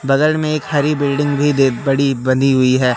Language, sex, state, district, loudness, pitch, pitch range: Hindi, male, Madhya Pradesh, Katni, -15 LUFS, 135 Hz, 130-145 Hz